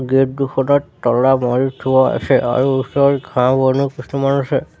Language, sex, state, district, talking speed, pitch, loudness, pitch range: Assamese, male, Assam, Sonitpur, 150 wpm, 130 Hz, -16 LUFS, 130-140 Hz